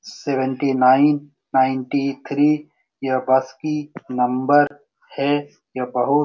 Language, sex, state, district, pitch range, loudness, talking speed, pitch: Hindi, male, Bihar, Saran, 130-145 Hz, -20 LUFS, 115 wpm, 140 Hz